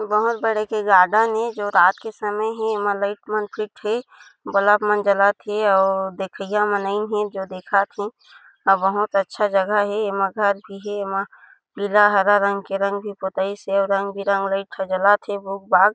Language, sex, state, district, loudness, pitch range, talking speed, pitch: Chhattisgarhi, female, Chhattisgarh, Jashpur, -20 LUFS, 195-210 Hz, 200 wpm, 205 Hz